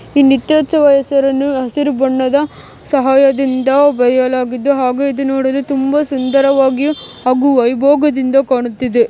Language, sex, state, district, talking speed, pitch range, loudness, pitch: Kannada, female, Karnataka, Mysore, 100 wpm, 260-280 Hz, -13 LUFS, 275 Hz